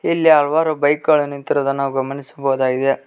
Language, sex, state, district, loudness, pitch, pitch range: Kannada, male, Karnataka, Koppal, -17 LUFS, 140 Hz, 135-150 Hz